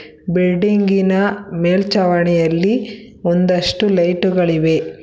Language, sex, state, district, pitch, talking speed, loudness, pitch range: Kannada, female, Karnataka, Bangalore, 180 Hz, 60 wpm, -16 LUFS, 175-200 Hz